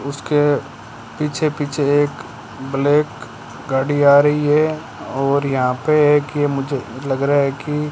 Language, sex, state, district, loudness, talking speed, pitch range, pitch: Hindi, male, Rajasthan, Bikaner, -18 LUFS, 150 wpm, 135-150 Hz, 140 Hz